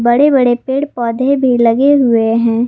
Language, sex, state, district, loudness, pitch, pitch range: Hindi, female, Jharkhand, Garhwa, -12 LUFS, 245 Hz, 235-270 Hz